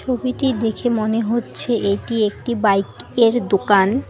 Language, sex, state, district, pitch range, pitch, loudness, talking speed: Bengali, female, West Bengal, Alipurduar, 205-240 Hz, 225 Hz, -19 LUFS, 130 wpm